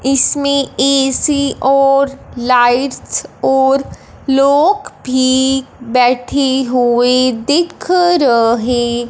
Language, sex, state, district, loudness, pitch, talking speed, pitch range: Hindi, female, Punjab, Fazilka, -13 LUFS, 265 Hz, 75 wpm, 250-275 Hz